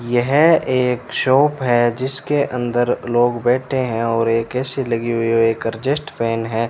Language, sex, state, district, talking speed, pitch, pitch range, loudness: Hindi, male, Rajasthan, Bikaner, 180 wpm, 120 Hz, 115-130 Hz, -18 LUFS